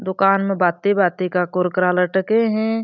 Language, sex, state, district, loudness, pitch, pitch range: Marwari, female, Rajasthan, Churu, -18 LUFS, 190 Hz, 180-205 Hz